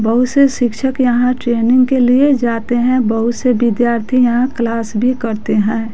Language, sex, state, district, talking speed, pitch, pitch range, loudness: Hindi, female, Bihar, West Champaran, 170 wpm, 240 Hz, 230-255 Hz, -14 LUFS